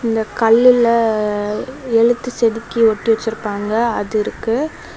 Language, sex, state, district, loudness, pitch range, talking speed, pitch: Tamil, female, Tamil Nadu, Kanyakumari, -16 LUFS, 215-235 Hz, 85 wpm, 225 Hz